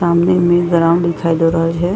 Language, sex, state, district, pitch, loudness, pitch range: Maithili, female, Bihar, Madhepura, 170 Hz, -14 LUFS, 165-175 Hz